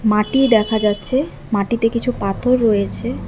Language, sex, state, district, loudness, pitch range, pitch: Bengali, female, West Bengal, Alipurduar, -17 LUFS, 210-250 Hz, 225 Hz